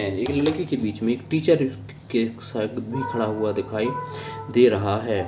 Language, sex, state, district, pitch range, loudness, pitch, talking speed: Hindi, male, Uttar Pradesh, Budaun, 110-145 Hz, -23 LUFS, 120 Hz, 180 wpm